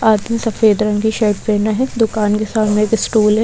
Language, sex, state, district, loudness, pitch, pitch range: Hindi, female, Madhya Pradesh, Bhopal, -15 LUFS, 215 Hz, 210-225 Hz